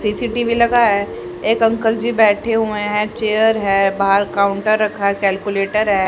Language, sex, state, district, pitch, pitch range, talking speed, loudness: Hindi, female, Haryana, Jhajjar, 210 Hz, 200-225 Hz, 160 wpm, -16 LUFS